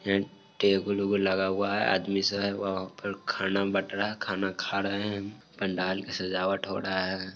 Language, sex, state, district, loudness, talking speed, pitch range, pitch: Hindi, male, Bihar, Sitamarhi, -29 LUFS, 170 wpm, 95-100 Hz, 100 Hz